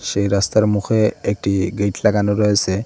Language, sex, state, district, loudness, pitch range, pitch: Bengali, male, Assam, Hailakandi, -18 LUFS, 100-105 Hz, 100 Hz